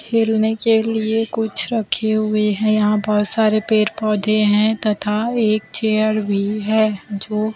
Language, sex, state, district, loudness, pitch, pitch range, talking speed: Hindi, female, Chhattisgarh, Raipur, -18 LUFS, 215 Hz, 210-220 Hz, 150 wpm